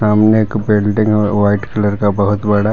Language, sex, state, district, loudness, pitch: Hindi, male, Jharkhand, Palamu, -14 LUFS, 105 Hz